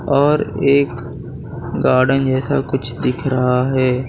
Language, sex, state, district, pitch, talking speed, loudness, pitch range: Hindi, male, Gujarat, Valsad, 130 Hz, 115 wpm, -17 LUFS, 125-140 Hz